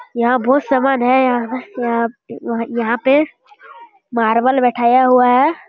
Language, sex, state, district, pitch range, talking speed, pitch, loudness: Hindi, male, Bihar, Jamui, 235-270 Hz, 115 wpm, 250 Hz, -15 LUFS